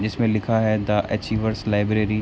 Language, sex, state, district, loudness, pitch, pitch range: Hindi, male, Bihar, Begusarai, -22 LUFS, 110 Hz, 105-110 Hz